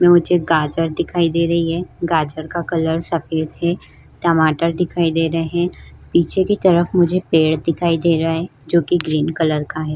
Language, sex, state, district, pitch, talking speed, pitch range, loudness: Hindi, female, Uttar Pradesh, Jyotiba Phule Nagar, 165 Hz, 180 wpm, 160-175 Hz, -18 LUFS